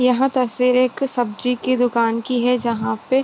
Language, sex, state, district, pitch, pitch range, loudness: Hindi, female, Bihar, Gopalganj, 250 Hz, 235-255 Hz, -19 LUFS